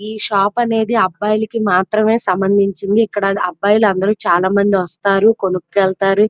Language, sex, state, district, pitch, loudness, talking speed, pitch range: Telugu, female, Andhra Pradesh, Krishna, 200 Hz, -15 LUFS, 135 wpm, 195-215 Hz